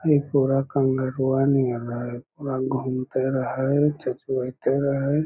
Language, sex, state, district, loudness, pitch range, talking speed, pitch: Magahi, male, Bihar, Lakhisarai, -24 LUFS, 130-140 Hz, 125 wpm, 135 Hz